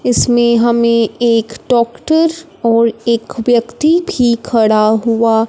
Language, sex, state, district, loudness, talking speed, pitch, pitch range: Hindi, male, Punjab, Fazilka, -13 LUFS, 110 wpm, 235 Hz, 230-245 Hz